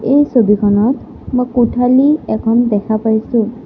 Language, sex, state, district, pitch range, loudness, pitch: Assamese, female, Assam, Sonitpur, 220-250 Hz, -13 LUFS, 240 Hz